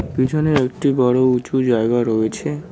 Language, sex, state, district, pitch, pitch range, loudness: Bengali, male, West Bengal, Cooch Behar, 130 Hz, 120-145 Hz, -18 LUFS